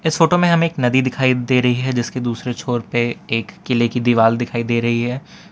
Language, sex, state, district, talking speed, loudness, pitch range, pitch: Hindi, male, Gujarat, Valsad, 240 wpm, -18 LUFS, 120-135 Hz, 125 Hz